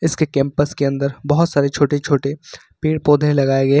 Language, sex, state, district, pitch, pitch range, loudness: Hindi, male, Uttar Pradesh, Lucknow, 145 Hz, 140-150 Hz, -17 LUFS